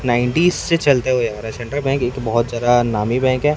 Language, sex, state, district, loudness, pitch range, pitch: Hindi, male, Chhattisgarh, Raipur, -18 LUFS, 120-140 Hz, 125 Hz